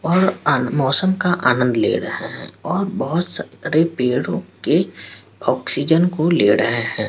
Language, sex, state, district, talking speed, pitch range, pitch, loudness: Hindi, male, Bihar, Patna, 150 wpm, 125-175 Hz, 160 Hz, -18 LUFS